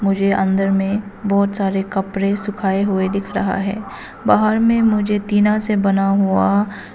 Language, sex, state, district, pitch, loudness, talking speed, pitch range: Hindi, female, Arunachal Pradesh, Papum Pare, 200 Hz, -17 LUFS, 155 wpm, 195-210 Hz